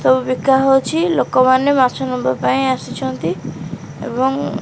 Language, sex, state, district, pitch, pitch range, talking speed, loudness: Odia, female, Odisha, Khordha, 255 Hz, 170-265 Hz, 130 wpm, -16 LUFS